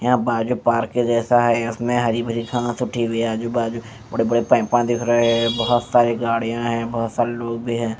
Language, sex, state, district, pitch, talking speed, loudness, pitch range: Hindi, male, Punjab, Fazilka, 115 Hz, 215 wpm, -20 LUFS, 115-120 Hz